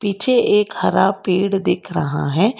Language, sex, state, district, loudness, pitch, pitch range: Hindi, female, Karnataka, Bangalore, -17 LUFS, 200 Hz, 185-210 Hz